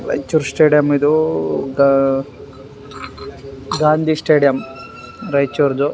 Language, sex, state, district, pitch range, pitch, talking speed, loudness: Kannada, male, Karnataka, Raichur, 135-150 Hz, 140 Hz, 70 wpm, -16 LUFS